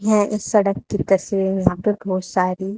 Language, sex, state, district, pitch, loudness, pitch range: Hindi, female, Haryana, Charkhi Dadri, 195 Hz, -20 LUFS, 185-205 Hz